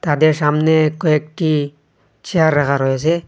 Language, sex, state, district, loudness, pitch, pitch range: Bengali, male, Assam, Hailakandi, -16 LUFS, 155 Hz, 145-160 Hz